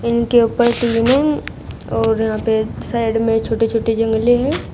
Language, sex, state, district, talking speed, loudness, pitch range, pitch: Hindi, female, Uttar Pradesh, Shamli, 140 wpm, -16 LUFS, 225-240 Hz, 230 Hz